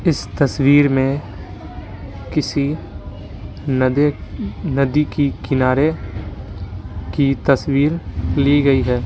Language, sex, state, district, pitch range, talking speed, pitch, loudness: Hindi, male, Bihar, Patna, 100-140 Hz, 85 wpm, 130 Hz, -18 LUFS